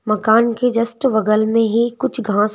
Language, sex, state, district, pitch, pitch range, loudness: Hindi, female, Madhya Pradesh, Bhopal, 230 Hz, 215-240 Hz, -16 LUFS